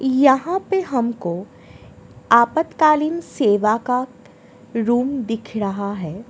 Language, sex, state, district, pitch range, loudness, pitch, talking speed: Hindi, female, Delhi, New Delhi, 215-275 Hz, -19 LUFS, 240 Hz, 105 wpm